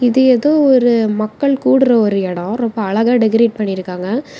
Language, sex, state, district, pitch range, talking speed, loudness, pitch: Tamil, female, Tamil Nadu, Kanyakumari, 215-260 Hz, 165 wpm, -14 LUFS, 230 Hz